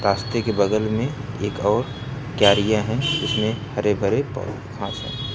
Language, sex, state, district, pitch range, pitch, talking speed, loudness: Hindi, male, Uttar Pradesh, Lucknow, 105-130 Hz, 110 Hz, 145 wpm, -22 LUFS